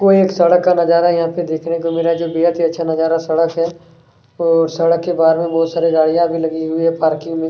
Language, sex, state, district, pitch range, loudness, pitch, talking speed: Hindi, male, Chhattisgarh, Kabirdham, 160-170 Hz, -15 LUFS, 165 Hz, 265 wpm